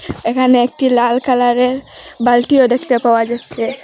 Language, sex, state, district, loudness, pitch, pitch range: Bengali, female, Assam, Hailakandi, -14 LUFS, 245 Hz, 240-255 Hz